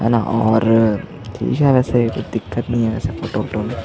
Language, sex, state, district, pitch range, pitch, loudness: Hindi, male, Chhattisgarh, Jashpur, 110-120 Hz, 115 Hz, -18 LUFS